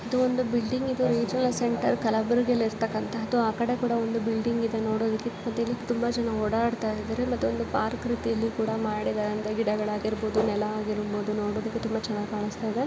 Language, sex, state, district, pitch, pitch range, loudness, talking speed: Kannada, female, Karnataka, Gulbarga, 225 Hz, 215-235 Hz, -27 LUFS, 155 wpm